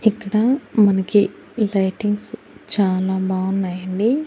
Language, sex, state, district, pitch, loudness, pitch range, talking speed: Telugu, female, Andhra Pradesh, Annamaya, 200 Hz, -20 LUFS, 190-215 Hz, 70 wpm